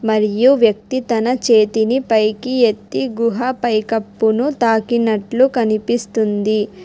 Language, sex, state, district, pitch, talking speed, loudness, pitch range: Telugu, female, Telangana, Hyderabad, 225 Hz, 90 wpm, -16 LUFS, 215-245 Hz